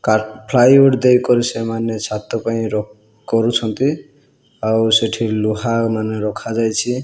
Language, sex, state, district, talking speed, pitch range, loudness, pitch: Odia, male, Odisha, Malkangiri, 50 wpm, 110-125 Hz, -17 LUFS, 115 Hz